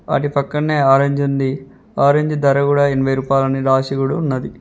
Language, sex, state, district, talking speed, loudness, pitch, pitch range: Telugu, male, Telangana, Mahabubabad, 170 wpm, -16 LUFS, 140 Hz, 135-140 Hz